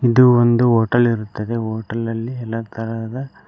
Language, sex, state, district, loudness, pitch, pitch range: Kannada, male, Karnataka, Koppal, -18 LUFS, 115 Hz, 115-120 Hz